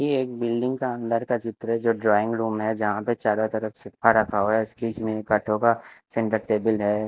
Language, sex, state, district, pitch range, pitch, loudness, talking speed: Hindi, male, Chhattisgarh, Raipur, 110-115 Hz, 110 Hz, -24 LUFS, 210 wpm